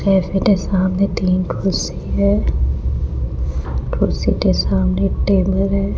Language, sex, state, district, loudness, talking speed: Hindi, female, Rajasthan, Jaipur, -18 LUFS, 100 wpm